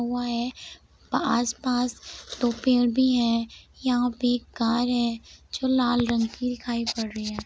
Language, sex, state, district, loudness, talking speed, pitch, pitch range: Hindi, female, Uttar Pradesh, Jalaun, -25 LUFS, 170 wpm, 240 Hz, 235-245 Hz